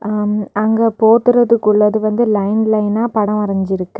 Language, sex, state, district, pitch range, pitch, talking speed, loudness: Tamil, female, Tamil Nadu, Kanyakumari, 210-225 Hz, 215 Hz, 135 wpm, -14 LUFS